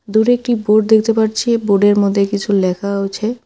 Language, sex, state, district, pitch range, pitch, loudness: Bengali, female, West Bengal, Alipurduar, 200-225 Hz, 215 Hz, -15 LUFS